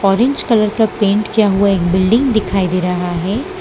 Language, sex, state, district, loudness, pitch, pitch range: Hindi, female, Gujarat, Valsad, -14 LUFS, 205 Hz, 190-225 Hz